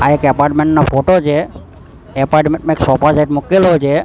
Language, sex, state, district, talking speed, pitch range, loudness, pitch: Gujarati, male, Gujarat, Gandhinagar, 190 wpm, 145-155 Hz, -12 LUFS, 150 Hz